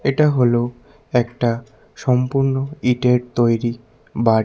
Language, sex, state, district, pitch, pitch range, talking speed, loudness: Bengali, male, Tripura, West Tripura, 125 Hz, 120-135 Hz, 95 wpm, -19 LUFS